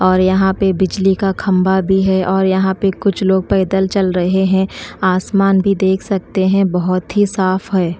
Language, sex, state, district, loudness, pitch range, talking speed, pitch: Hindi, female, Haryana, Charkhi Dadri, -15 LUFS, 185-195 Hz, 195 wpm, 190 Hz